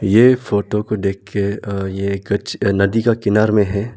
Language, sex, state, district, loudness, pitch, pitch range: Hindi, male, Arunachal Pradesh, Lower Dibang Valley, -17 LUFS, 100 Hz, 100-110 Hz